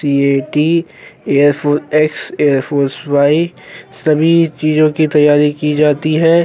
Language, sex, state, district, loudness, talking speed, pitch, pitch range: Hindi, male, Uttar Pradesh, Jyotiba Phule Nagar, -13 LUFS, 110 wpm, 150 Hz, 145-155 Hz